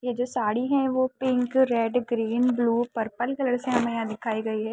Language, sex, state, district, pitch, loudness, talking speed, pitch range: Hindi, female, Jharkhand, Sahebganj, 245 Hz, -25 LUFS, 215 wpm, 230-255 Hz